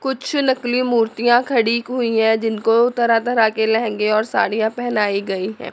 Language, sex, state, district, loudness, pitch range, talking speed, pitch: Hindi, female, Chandigarh, Chandigarh, -18 LUFS, 220-245 Hz, 165 wpm, 230 Hz